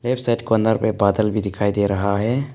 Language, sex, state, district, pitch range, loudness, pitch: Hindi, male, Arunachal Pradesh, Papum Pare, 100-115 Hz, -19 LUFS, 110 Hz